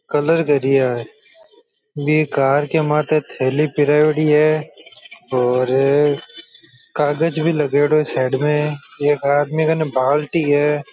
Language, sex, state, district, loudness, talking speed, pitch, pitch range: Rajasthani, male, Rajasthan, Churu, -17 LUFS, 120 wpm, 150 Hz, 140-155 Hz